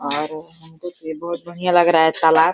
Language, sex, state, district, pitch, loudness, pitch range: Hindi, male, Uttar Pradesh, Deoria, 160 Hz, -18 LUFS, 160-175 Hz